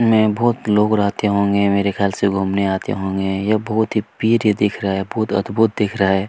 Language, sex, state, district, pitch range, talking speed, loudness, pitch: Hindi, male, Chhattisgarh, Kabirdham, 100-110 Hz, 220 wpm, -18 LUFS, 105 Hz